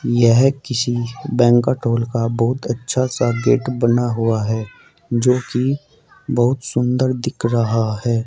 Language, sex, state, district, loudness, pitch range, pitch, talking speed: Hindi, male, Uttar Pradesh, Saharanpur, -18 LUFS, 115-130 Hz, 120 Hz, 140 wpm